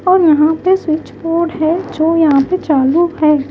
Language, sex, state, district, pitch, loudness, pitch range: Hindi, female, Bihar, Katihar, 325 Hz, -13 LUFS, 310-340 Hz